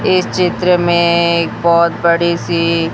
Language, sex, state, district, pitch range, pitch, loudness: Hindi, female, Chhattisgarh, Raipur, 170-175 Hz, 170 Hz, -13 LUFS